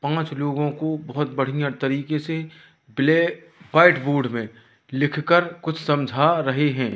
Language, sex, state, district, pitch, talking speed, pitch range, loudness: Hindi, male, Madhya Pradesh, Katni, 145 Hz, 140 wpm, 135-160 Hz, -22 LUFS